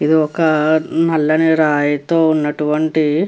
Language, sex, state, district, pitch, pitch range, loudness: Telugu, female, Andhra Pradesh, Krishna, 155 Hz, 150-160 Hz, -15 LUFS